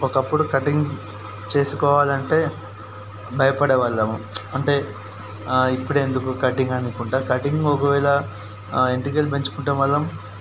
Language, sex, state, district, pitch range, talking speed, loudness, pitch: Telugu, male, Telangana, Nalgonda, 105-140 Hz, 85 wpm, -21 LUFS, 130 Hz